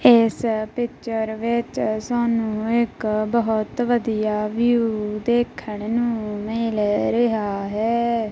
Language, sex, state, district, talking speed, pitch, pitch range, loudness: Punjabi, female, Punjab, Kapurthala, 95 wpm, 225 Hz, 215-235 Hz, -22 LUFS